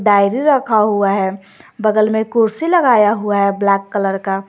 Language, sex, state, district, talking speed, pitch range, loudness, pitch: Hindi, female, Jharkhand, Garhwa, 175 wpm, 200-220 Hz, -15 LUFS, 210 Hz